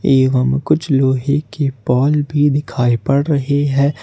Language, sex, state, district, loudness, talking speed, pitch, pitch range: Hindi, male, Jharkhand, Ranchi, -16 LUFS, 150 wpm, 140 Hz, 130-145 Hz